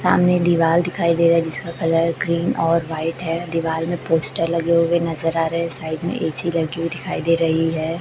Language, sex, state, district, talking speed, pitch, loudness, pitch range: Hindi, male, Chhattisgarh, Raipur, 225 wpm, 165 Hz, -20 LUFS, 165-170 Hz